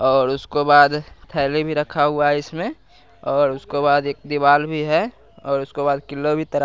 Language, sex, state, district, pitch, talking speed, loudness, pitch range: Hindi, male, Bihar, West Champaran, 145 Hz, 205 wpm, -19 LUFS, 140-150 Hz